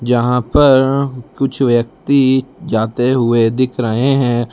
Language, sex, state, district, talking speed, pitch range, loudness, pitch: Hindi, male, Jharkhand, Palamu, 120 wpm, 120-135 Hz, -14 LUFS, 125 Hz